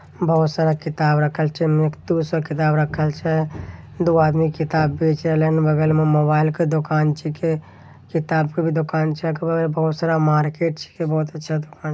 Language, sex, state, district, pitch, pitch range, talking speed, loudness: Angika, male, Bihar, Begusarai, 155 Hz, 155-160 Hz, 165 wpm, -20 LUFS